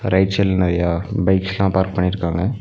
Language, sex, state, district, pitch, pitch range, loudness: Tamil, male, Tamil Nadu, Nilgiris, 95 Hz, 90-95 Hz, -18 LUFS